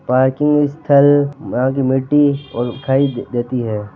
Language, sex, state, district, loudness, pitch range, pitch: Marwari, male, Rajasthan, Nagaur, -16 LUFS, 125-145 Hz, 135 Hz